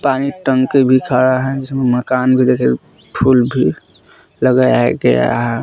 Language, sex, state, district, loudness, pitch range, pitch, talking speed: Hindi, male, Jharkhand, Palamu, -14 LUFS, 125-130 Hz, 130 Hz, 140 wpm